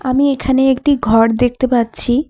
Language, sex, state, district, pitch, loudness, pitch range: Bengali, female, West Bengal, Alipurduar, 255 Hz, -14 LUFS, 240-270 Hz